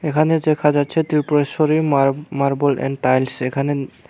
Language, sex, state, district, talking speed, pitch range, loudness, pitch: Bengali, male, Tripura, Unakoti, 130 wpm, 135-155 Hz, -18 LUFS, 145 Hz